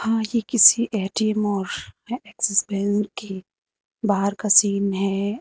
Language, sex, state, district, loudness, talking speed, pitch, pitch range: Hindi, female, Uttar Pradesh, Lucknow, -20 LUFS, 120 wpm, 205 Hz, 200-225 Hz